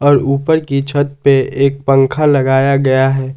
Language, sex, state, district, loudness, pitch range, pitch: Hindi, male, Jharkhand, Palamu, -13 LUFS, 135-140 Hz, 140 Hz